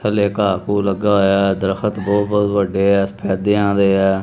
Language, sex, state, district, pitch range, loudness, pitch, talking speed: Punjabi, male, Punjab, Kapurthala, 95-100 Hz, -17 LUFS, 100 Hz, 155 wpm